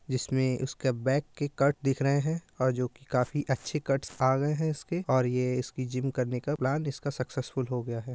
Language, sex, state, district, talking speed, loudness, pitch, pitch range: Hindi, male, Uttar Pradesh, Muzaffarnagar, 200 wpm, -30 LUFS, 135 Hz, 130-145 Hz